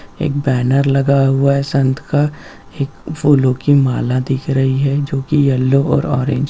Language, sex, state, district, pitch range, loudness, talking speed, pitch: Hindi, male, Bihar, Jamui, 135-145 Hz, -15 LUFS, 185 wpm, 140 Hz